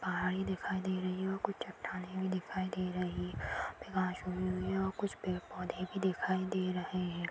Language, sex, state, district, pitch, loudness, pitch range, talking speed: Hindi, female, Bihar, Bhagalpur, 185 Hz, -37 LUFS, 180-190 Hz, 170 wpm